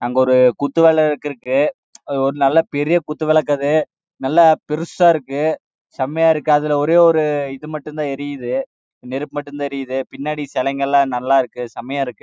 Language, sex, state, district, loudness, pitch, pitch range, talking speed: Tamil, male, Karnataka, Chamarajanagar, -17 LUFS, 145 Hz, 135-155 Hz, 120 wpm